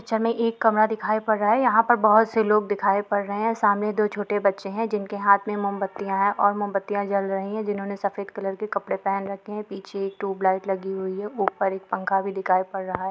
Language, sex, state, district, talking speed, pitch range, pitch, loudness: Hindi, female, Chhattisgarh, Bilaspur, 240 wpm, 195-215 Hz, 200 Hz, -24 LUFS